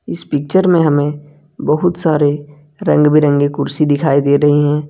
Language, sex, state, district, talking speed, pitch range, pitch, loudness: Hindi, male, Jharkhand, Ranchi, 160 wpm, 145-150 Hz, 150 Hz, -14 LUFS